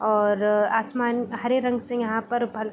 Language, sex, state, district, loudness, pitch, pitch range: Hindi, female, Bihar, Vaishali, -24 LUFS, 230 Hz, 215-240 Hz